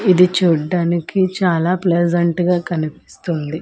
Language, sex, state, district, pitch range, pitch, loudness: Telugu, female, Andhra Pradesh, Manyam, 170-180 Hz, 175 Hz, -17 LUFS